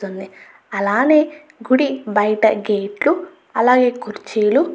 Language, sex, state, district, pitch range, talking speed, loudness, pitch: Telugu, female, Andhra Pradesh, Guntur, 210-300 Hz, 100 wpm, -17 LUFS, 240 Hz